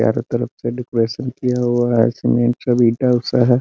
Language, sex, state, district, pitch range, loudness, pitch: Hindi, male, Bihar, Muzaffarpur, 120-125 Hz, -18 LUFS, 120 Hz